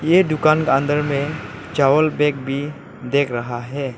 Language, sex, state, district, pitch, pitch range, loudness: Hindi, male, Arunachal Pradesh, Lower Dibang Valley, 145 Hz, 135-155 Hz, -19 LUFS